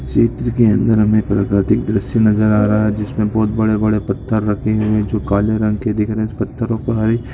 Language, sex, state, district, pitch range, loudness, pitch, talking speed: Hindi, male, Jharkhand, Sahebganj, 105-110 Hz, -16 LUFS, 110 Hz, 230 wpm